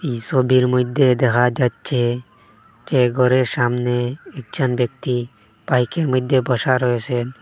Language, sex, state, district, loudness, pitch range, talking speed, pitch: Bengali, male, Assam, Hailakandi, -19 LUFS, 120-130 Hz, 120 wpm, 125 Hz